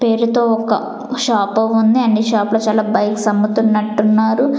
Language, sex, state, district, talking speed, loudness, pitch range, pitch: Telugu, female, Andhra Pradesh, Sri Satya Sai, 130 wpm, -15 LUFS, 215-230 Hz, 220 Hz